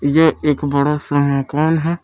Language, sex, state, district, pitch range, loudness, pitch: Hindi, male, Jharkhand, Palamu, 140-160 Hz, -16 LUFS, 150 Hz